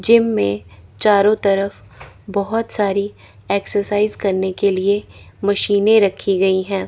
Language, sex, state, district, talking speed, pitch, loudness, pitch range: Hindi, female, Chandigarh, Chandigarh, 120 wpm, 200 Hz, -17 LUFS, 185-205 Hz